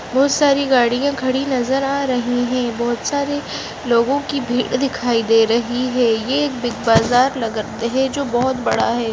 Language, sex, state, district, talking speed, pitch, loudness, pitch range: Hindi, female, Karnataka, Dakshina Kannada, 185 wpm, 250 Hz, -18 LUFS, 240-275 Hz